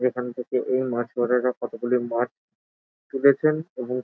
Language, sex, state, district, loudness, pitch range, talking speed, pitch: Bengali, male, West Bengal, Jalpaiguri, -24 LUFS, 120-130 Hz, 150 wpm, 125 Hz